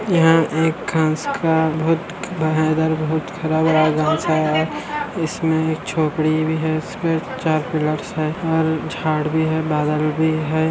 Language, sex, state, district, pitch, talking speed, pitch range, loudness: Hindi, male, Andhra Pradesh, Anantapur, 160 Hz, 125 wpm, 155-160 Hz, -19 LUFS